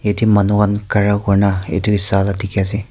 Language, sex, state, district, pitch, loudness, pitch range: Nagamese, male, Nagaland, Kohima, 100 Hz, -15 LUFS, 100-105 Hz